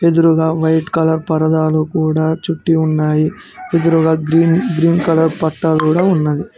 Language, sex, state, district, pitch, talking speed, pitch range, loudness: Telugu, male, Telangana, Mahabubabad, 160 Hz, 125 wpm, 155-165 Hz, -14 LUFS